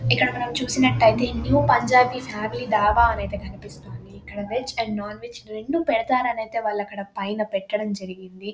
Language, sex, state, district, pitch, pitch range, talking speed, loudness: Telugu, female, Telangana, Nalgonda, 215 Hz, 205-245 Hz, 170 wpm, -22 LUFS